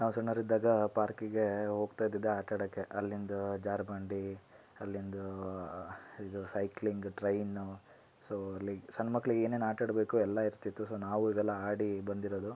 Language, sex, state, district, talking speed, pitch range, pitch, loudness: Kannada, male, Karnataka, Shimoga, 135 wpm, 100-110 Hz, 105 Hz, -36 LUFS